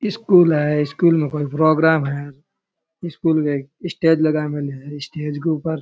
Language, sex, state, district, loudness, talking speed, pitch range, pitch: Rajasthani, male, Rajasthan, Churu, -18 LUFS, 175 wpm, 145-160 Hz, 155 Hz